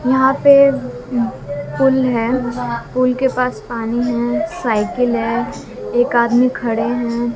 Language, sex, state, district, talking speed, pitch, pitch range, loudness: Hindi, female, Haryana, Jhajjar, 120 wpm, 240 Hz, 230-255 Hz, -17 LUFS